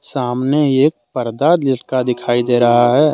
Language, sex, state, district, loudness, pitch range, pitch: Hindi, male, Jharkhand, Deoghar, -15 LUFS, 120-145 Hz, 130 Hz